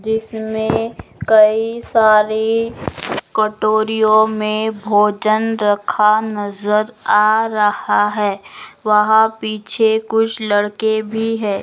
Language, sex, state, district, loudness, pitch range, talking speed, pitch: Magahi, female, Bihar, Gaya, -16 LUFS, 210-220 Hz, 90 wpm, 215 Hz